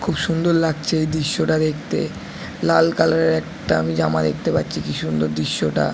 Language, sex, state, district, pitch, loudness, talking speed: Bengali, male, West Bengal, Kolkata, 120 Hz, -20 LUFS, 160 wpm